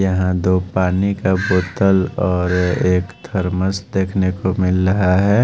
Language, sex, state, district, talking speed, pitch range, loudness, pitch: Hindi, male, Haryana, Jhajjar, 145 wpm, 90-95 Hz, -17 LUFS, 95 Hz